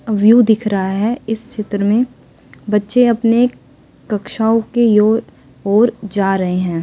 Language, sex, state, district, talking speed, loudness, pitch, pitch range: Hindi, female, Delhi, New Delhi, 140 wpm, -15 LUFS, 220 Hz, 205-230 Hz